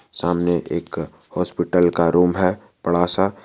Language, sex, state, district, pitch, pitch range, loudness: Hindi, male, Jharkhand, Garhwa, 85 Hz, 85-90 Hz, -20 LUFS